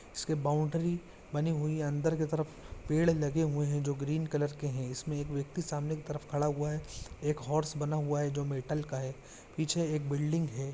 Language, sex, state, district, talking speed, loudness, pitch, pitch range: Hindi, male, Andhra Pradesh, Visakhapatnam, 220 wpm, -34 LUFS, 150 Hz, 145-155 Hz